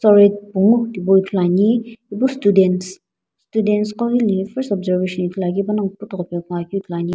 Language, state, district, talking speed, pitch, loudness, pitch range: Sumi, Nagaland, Dimapur, 145 wpm, 200 Hz, -18 LUFS, 185-210 Hz